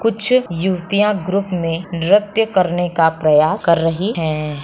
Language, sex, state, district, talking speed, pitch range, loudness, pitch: Hindi, female, Bihar, Samastipur, 140 wpm, 165-205 Hz, -16 LUFS, 175 Hz